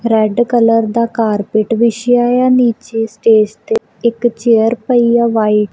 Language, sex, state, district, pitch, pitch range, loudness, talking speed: Punjabi, female, Punjab, Kapurthala, 230 Hz, 220-240 Hz, -13 LUFS, 155 wpm